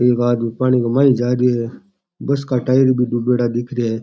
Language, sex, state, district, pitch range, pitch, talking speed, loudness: Rajasthani, male, Rajasthan, Churu, 120-130 Hz, 125 Hz, 225 wpm, -17 LUFS